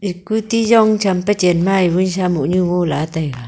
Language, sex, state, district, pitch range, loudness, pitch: Wancho, female, Arunachal Pradesh, Longding, 175-205 Hz, -16 LUFS, 185 Hz